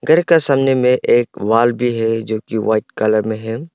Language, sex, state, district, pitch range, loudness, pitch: Hindi, male, Arunachal Pradesh, Longding, 110-135 Hz, -16 LUFS, 115 Hz